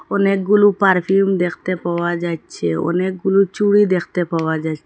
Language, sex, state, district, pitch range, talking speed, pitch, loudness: Bengali, female, Assam, Hailakandi, 170-195 Hz, 135 wpm, 185 Hz, -17 LUFS